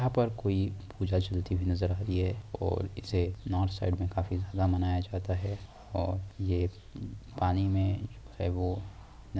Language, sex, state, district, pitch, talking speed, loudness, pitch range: Hindi, male, Bihar, Saharsa, 95 Hz, 170 wpm, -32 LUFS, 90-100 Hz